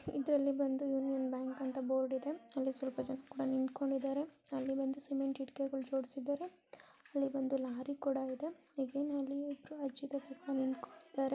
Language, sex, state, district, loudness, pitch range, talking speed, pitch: Kannada, female, Karnataka, Raichur, -39 LUFS, 265-280 Hz, 120 wpm, 275 Hz